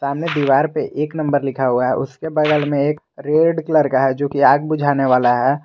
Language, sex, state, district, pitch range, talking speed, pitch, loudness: Hindi, male, Jharkhand, Garhwa, 135-150 Hz, 225 wpm, 145 Hz, -17 LUFS